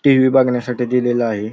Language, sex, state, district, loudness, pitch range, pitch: Marathi, male, Maharashtra, Pune, -16 LUFS, 120-130 Hz, 125 Hz